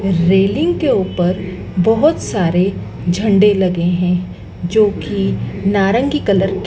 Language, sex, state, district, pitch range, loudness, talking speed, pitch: Hindi, female, Madhya Pradesh, Dhar, 180-210 Hz, -15 LUFS, 110 wpm, 195 Hz